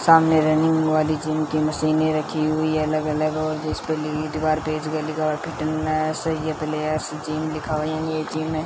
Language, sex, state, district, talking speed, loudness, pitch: Hindi, female, Rajasthan, Bikaner, 180 wpm, -23 LUFS, 155 Hz